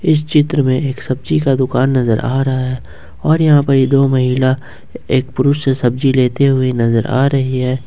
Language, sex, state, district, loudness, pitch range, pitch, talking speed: Hindi, male, Jharkhand, Ranchi, -14 LUFS, 130-140 Hz, 130 Hz, 205 wpm